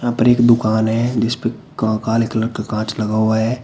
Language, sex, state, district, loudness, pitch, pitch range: Hindi, male, Uttar Pradesh, Shamli, -17 LUFS, 115 Hz, 110-120 Hz